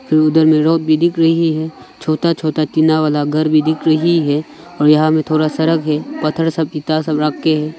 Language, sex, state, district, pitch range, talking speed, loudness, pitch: Hindi, male, Arunachal Pradesh, Longding, 155-160 Hz, 215 wpm, -15 LUFS, 155 Hz